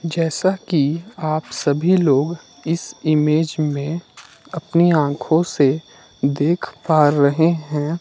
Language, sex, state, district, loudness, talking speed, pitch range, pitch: Hindi, male, Himachal Pradesh, Shimla, -19 LUFS, 110 wpm, 145-165 Hz, 155 Hz